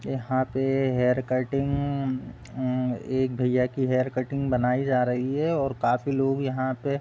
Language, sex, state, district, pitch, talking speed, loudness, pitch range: Hindi, male, Uttar Pradesh, Deoria, 130 Hz, 180 wpm, -26 LUFS, 125-135 Hz